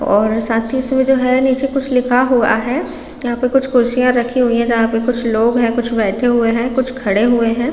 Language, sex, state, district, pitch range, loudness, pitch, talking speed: Hindi, female, Chhattisgarh, Raigarh, 230-260 Hz, -15 LUFS, 245 Hz, 240 wpm